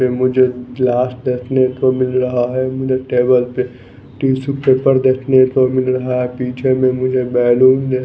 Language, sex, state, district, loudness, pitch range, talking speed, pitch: Hindi, male, Bihar, West Champaran, -15 LUFS, 125-130 Hz, 180 wpm, 130 Hz